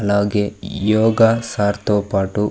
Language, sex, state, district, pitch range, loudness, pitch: Telugu, male, Andhra Pradesh, Sri Satya Sai, 100-110 Hz, -18 LUFS, 105 Hz